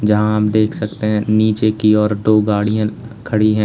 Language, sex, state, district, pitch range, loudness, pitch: Hindi, male, Uttar Pradesh, Lalitpur, 105-110 Hz, -16 LUFS, 105 Hz